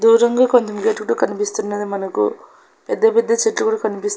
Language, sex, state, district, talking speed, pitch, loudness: Telugu, female, Andhra Pradesh, Annamaya, 160 wpm, 255 Hz, -18 LUFS